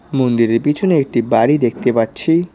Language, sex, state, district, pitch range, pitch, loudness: Bengali, male, West Bengal, Cooch Behar, 115-150 Hz, 130 Hz, -15 LUFS